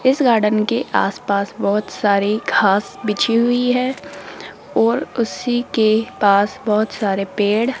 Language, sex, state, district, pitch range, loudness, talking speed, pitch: Hindi, female, Rajasthan, Jaipur, 205-240 Hz, -18 LUFS, 130 wpm, 220 Hz